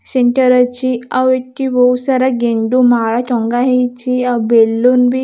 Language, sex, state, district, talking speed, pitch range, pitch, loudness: Odia, female, Odisha, Khordha, 135 wpm, 240-255 Hz, 250 Hz, -13 LUFS